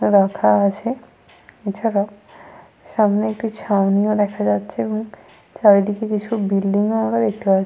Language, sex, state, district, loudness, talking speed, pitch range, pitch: Bengali, female, Jharkhand, Sahebganj, -19 LUFS, 140 wpm, 200-220 Hz, 205 Hz